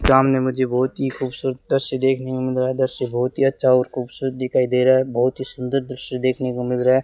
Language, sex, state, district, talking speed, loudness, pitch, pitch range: Hindi, male, Rajasthan, Bikaner, 255 wpm, -20 LUFS, 130 Hz, 125-130 Hz